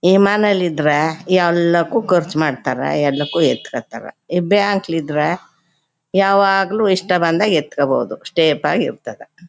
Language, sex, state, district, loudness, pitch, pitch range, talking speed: Kannada, female, Karnataka, Chamarajanagar, -16 LUFS, 175 Hz, 160-195 Hz, 115 wpm